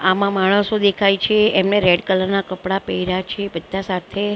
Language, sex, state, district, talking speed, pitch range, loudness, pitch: Gujarati, female, Maharashtra, Mumbai Suburban, 180 wpm, 185-200 Hz, -18 LUFS, 195 Hz